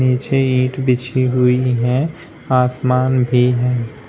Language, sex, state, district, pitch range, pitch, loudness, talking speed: Hindi, male, Uttar Pradesh, Shamli, 125-130 Hz, 125 Hz, -16 LUFS, 120 wpm